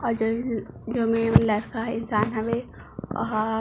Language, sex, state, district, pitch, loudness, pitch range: Chhattisgarhi, female, Chhattisgarh, Bilaspur, 225 Hz, -25 LUFS, 220-230 Hz